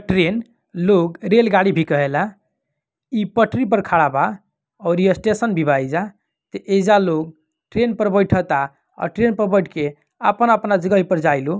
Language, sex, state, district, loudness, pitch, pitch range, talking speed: Bhojpuri, male, Bihar, Gopalganj, -18 LUFS, 190 Hz, 165-215 Hz, 155 wpm